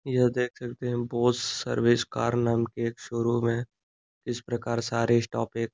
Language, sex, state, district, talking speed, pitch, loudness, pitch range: Hindi, male, Uttar Pradesh, Gorakhpur, 190 wpm, 120 Hz, -27 LUFS, 115-120 Hz